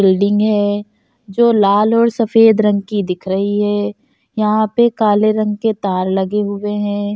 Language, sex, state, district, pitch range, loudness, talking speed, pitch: Hindi, female, Bihar, Bhagalpur, 205-220 Hz, -15 LUFS, 165 wpm, 210 Hz